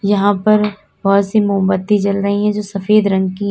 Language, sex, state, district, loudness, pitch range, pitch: Hindi, female, Uttar Pradesh, Lalitpur, -15 LUFS, 195-210 Hz, 200 Hz